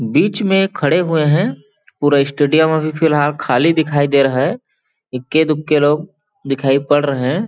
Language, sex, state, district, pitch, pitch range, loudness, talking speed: Hindi, male, Chhattisgarh, Balrampur, 150 Hz, 140-160 Hz, -15 LUFS, 170 wpm